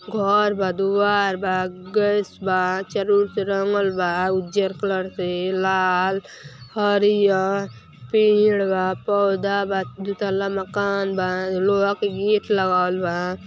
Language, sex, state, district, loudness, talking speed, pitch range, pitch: Hindi, female, Uttar Pradesh, Ghazipur, -21 LUFS, 135 wpm, 185-200 Hz, 195 Hz